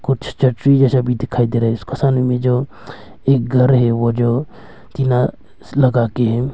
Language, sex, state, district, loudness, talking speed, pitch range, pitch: Hindi, male, Arunachal Pradesh, Longding, -16 LUFS, 190 wpm, 120-130 Hz, 125 Hz